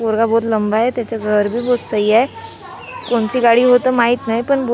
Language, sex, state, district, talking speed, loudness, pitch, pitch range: Marathi, female, Maharashtra, Gondia, 215 wpm, -15 LUFS, 235 Hz, 225-250 Hz